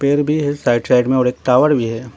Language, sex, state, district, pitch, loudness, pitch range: Hindi, male, Arunachal Pradesh, Lower Dibang Valley, 125 Hz, -15 LUFS, 120-145 Hz